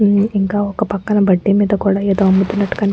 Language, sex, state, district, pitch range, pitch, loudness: Telugu, female, Andhra Pradesh, Anantapur, 195-205 Hz, 200 Hz, -15 LUFS